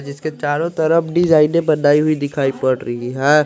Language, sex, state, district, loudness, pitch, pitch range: Hindi, male, Jharkhand, Garhwa, -16 LUFS, 150 Hz, 140-160 Hz